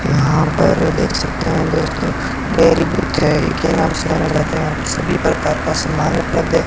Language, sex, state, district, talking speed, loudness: Hindi, male, Rajasthan, Bikaner, 110 wpm, -16 LUFS